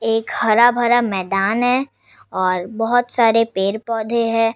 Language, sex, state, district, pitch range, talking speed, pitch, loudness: Hindi, female, Bihar, Vaishali, 200-240 Hz, 120 wpm, 225 Hz, -17 LUFS